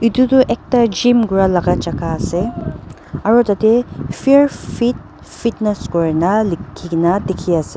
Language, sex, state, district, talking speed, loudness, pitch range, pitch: Nagamese, female, Nagaland, Dimapur, 125 wpm, -16 LUFS, 175-240 Hz, 210 Hz